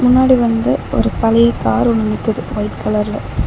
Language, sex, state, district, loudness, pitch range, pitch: Tamil, female, Tamil Nadu, Chennai, -15 LUFS, 220-250 Hz, 235 Hz